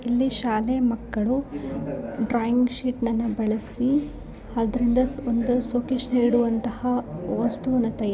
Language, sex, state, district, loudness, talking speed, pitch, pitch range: Kannada, female, Karnataka, Dakshina Kannada, -24 LUFS, 80 wpm, 245 Hz, 230-250 Hz